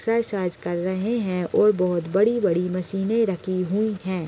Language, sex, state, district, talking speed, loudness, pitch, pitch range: Hindi, female, Uttar Pradesh, Deoria, 180 wpm, -23 LUFS, 190 Hz, 180-215 Hz